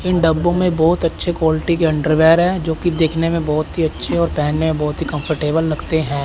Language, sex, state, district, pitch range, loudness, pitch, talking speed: Hindi, male, Chandigarh, Chandigarh, 155-170 Hz, -17 LUFS, 160 Hz, 230 wpm